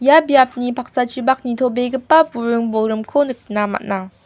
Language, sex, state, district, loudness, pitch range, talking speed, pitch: Garo, female, Meghalaya, West Garo Hills, -17 LUFS, 225-265 Hz, 115 wpm, 250 Hz